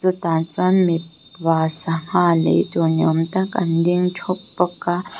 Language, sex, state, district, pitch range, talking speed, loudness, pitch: Mizo, female, Mizoram, Aizawl, 165-180 Hz, 150 wpm, -19 LUFS, 170 Hz